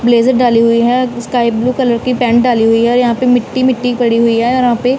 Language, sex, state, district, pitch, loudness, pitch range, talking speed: Hindi, female, Punjab, Kapurthala, 240 Hz, -12 LUFS, 235-250 Hz, 275 wpm